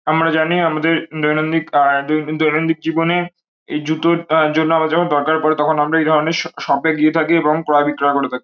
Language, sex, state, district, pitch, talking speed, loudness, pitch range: Bengali, male, West Bengal, Malda, 155 Hz, 205 wpm, -16 LUFS, 150-165 Hz